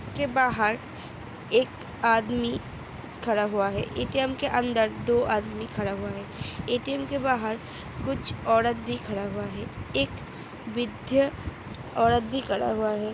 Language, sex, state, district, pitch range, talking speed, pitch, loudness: Hindi, female, Uttar Pradesh, Hamirpur, 210-260 Hz, 140 wpm, 235 Hz, -27 LUFS